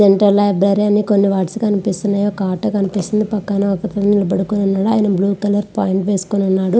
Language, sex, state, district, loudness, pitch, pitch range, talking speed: Telugu, female, Andhra Pradesh, Visakhapatnam, -16 LUFS, 200 Hz, 195-205 Hz, 140 wpm